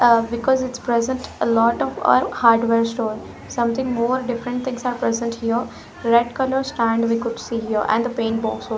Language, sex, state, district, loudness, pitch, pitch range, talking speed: English, female, Punjab, Pathankot, -20 LUFS, 235 Hz, 230-250 Hz, 190 wpm